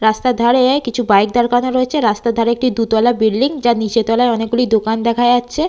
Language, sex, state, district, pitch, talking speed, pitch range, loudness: Bengali, female, Jharkhand, Sahebganj, 240 Hz, 200 wpm, 225-250 Hz, -15 LUFS